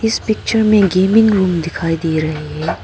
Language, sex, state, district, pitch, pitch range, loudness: Hindi, female, Arunachal Pradesh, Papum Pare, 185 Hz, 165-215 Hz, -15 LUFS